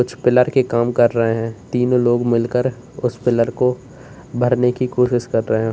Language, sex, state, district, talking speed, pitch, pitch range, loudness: Hindi, male, Uttar Pradesh, Lalitpur, 180 wpm, 125 Hz, 120-125 Hz, -18 LUFS